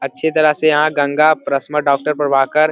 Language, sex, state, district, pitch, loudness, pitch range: Hindi, male, Bihar, Jamui, 150 Hz, -15 LUFS, 140-155 Hz